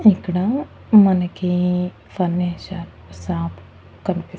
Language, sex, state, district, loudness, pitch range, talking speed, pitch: Telugu, female, Andhra Pradesh, Annamaya, -20 LUFS, 175-190 Hz, 70 wpm, 180 Hz